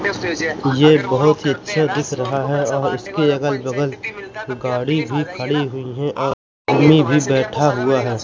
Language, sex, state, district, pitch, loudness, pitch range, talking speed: Hindi, male, Madhya Pradesh, Katni, 145 Hz, -18 LUFS, 135-155 Hz, 160 wpm